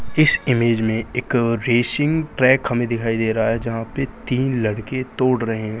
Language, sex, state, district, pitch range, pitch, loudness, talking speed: Hindi, male, Bihar, Jahanabad, 115-130 Hz, 120 Hz, -20 LUFS, 185 wpm